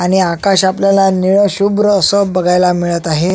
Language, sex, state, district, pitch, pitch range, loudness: Marathi, male, Maharashtra, Sindhudurg, 190 Hz, 180-200 Hz, -12 LUFS